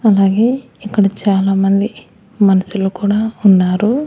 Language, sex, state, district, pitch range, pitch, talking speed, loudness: Telugu, male, Andhra Pradesh, Annamaya, 195-220 Hz, 200 Hz, 90 wpm, -14 LUFS